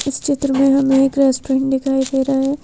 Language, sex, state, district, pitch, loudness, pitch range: Hindi, female, Madhya Pradesh, Bhopal, 270 Hz, -16 LUFS, 270-275 Hz